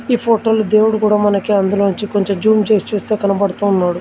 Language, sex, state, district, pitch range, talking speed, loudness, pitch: Telugu, male, Telangana, Komaram Bheem, 200-215 Hz, 180 wpm, -15 LUFS, 210 Hz